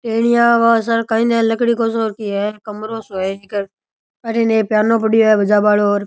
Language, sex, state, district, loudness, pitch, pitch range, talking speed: Rajasthani, male, Rajasthan, Churu, -16 LUFS, 220 Hz, 210-230 Hz, 180 wpm